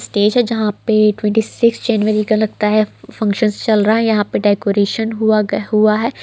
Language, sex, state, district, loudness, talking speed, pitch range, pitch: Hindi, female, Bihar, East Champaran, -15 LUFS, 200 wpm, 210-225 Hz, 215 Hz